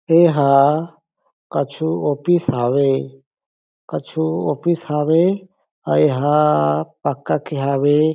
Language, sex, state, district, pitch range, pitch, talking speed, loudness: Chhattisgarhi, male, Chhattisgarh, Jashpur, 140-160 Hz, 150 Hz, 95 wpm, -18 LUFS